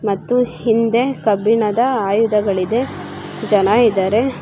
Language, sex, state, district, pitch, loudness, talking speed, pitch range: Kannada, female, Karnataka, Gulbarga, 225 Hz, -16 LUFS, 95 wpm, 205-240 Hz